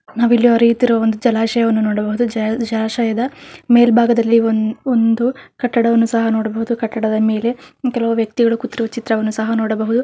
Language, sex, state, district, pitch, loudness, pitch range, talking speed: Kannada, female, Karnataka, Raichur, 230 Hz, -16 LUFS, 220-235 Hz, 125 wpm